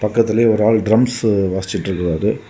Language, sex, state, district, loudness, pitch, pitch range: Tamil, male, Tamil Nadu, Kanyakumari, -16 LUFS, 110 Hz, 95-115 Hz